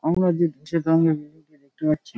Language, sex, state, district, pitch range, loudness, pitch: Bengali, male, West Bengal, Dakshin Dinajpur, 150-170 Hz, -22 LUFS, 160 Hz